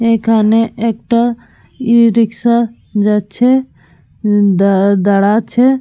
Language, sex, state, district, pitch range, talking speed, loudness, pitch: Bengali, female, Jharkhand, Jamtara, 210-235 Hz, 95 wpm, -12 LUFS, 225 Hz